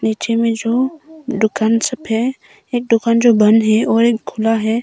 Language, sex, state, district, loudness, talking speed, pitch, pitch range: Hindi, female, Arunachal Pradesh, Longding, -15 LUFS, 185 wpm, 230 Hz, 220-240 Hz